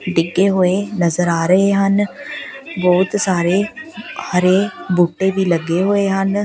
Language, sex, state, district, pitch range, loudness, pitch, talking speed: Punjabi, female, Punjab, Pathankot, 180-195 Hz, -16 LUFS, 185 Hz, 130 wpm